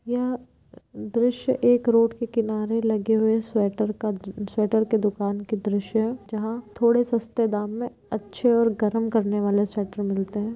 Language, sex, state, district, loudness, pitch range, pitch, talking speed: Hindi, female, Uttar Pradesh, Varanasi, -24 LUFS, 210-230 Hz, 220 Hz, 165 wpm